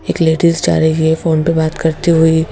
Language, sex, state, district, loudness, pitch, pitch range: Hindi, female, Madhya Pradesh, Bhopal, -13 LUFS, 160 Hz, 160-165 Hz